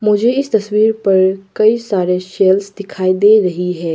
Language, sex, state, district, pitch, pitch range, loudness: Hindi, female, Arunachal Pradesh, Papum Pare, 195 Hz, 185-215 Hz, -14 LUFS